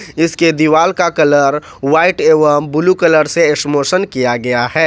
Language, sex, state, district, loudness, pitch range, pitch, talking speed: Hindi, male, Jharkhand, Ranchi, -12 LUFS, 145-165 Hz, 155 Hz, 160 wpm